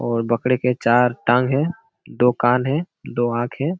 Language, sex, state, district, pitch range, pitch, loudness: Hindi, male, Bihar, Jamui, 120-140 Hz, 125 Hz, -20 LUFS